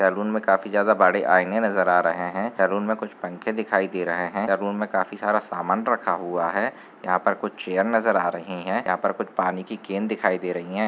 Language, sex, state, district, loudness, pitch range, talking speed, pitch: Hindi, male, Chhattisgarh, Sarguja, -23 LUFS, 90-110 Hz, 240 wpm, 100 Hz